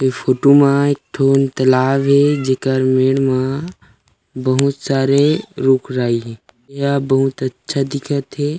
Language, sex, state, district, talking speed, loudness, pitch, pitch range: Chhattisgarhi, male, Chhattisgarh, Rajnandgaon, 140 wpm, -16 LUFS, 135 Hz, 130-140 Hz